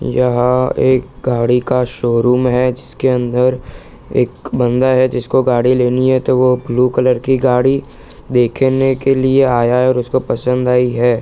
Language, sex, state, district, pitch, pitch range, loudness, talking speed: Hindi, male, Bihar, East Champaran, 125 Hz, 125-130 Hz, -14 LUFS, 170 wpm